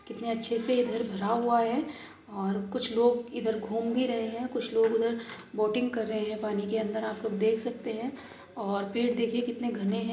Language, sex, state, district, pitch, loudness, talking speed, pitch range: Hindi, female, Uttar Pradesh, Muzaffarnagar, 230 Hz, -30 LUFS, 215 wpm, 220-240 Hz